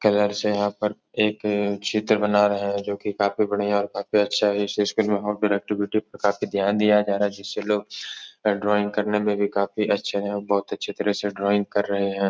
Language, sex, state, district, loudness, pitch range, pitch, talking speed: Hindi, male, Uttar Pradesh, Etah, -23 LUFS, 100-105 Hz, 105 Hz, 210 wpm